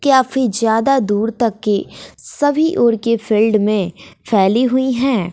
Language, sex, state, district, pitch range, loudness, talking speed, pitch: Hindi, female, Bihar, West Champaran, 210-260 Hz, -16 LUFS, 145 wpm, 230 Hz